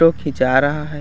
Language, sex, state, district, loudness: Hindi, male, Chhattisgarh, Raigarh, -17 LUFS